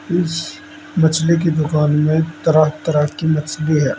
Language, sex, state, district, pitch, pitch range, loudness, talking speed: Hindi, male, Uttar Pradesh, Saharanpur, 155 Hz, 150-160 Hz, -17 LUFS, 150 wpm